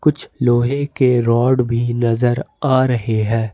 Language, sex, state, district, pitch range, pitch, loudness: Hindi, male, Jharkhand, Ranchi, 115-130 Hz, 120 Hz, -17 LUFS